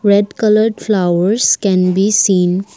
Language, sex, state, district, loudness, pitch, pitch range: English, female, Assam, Kamrup Metropolitan, -13 LUFS, 200 Hz, 185-215 Hz